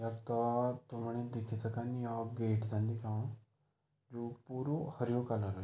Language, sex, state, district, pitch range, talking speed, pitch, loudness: Garhwali, male, Uttarakhand, Tehri Garhwal, 115-125 Hz, 140 wpm, 120 Hz, -38 LUFS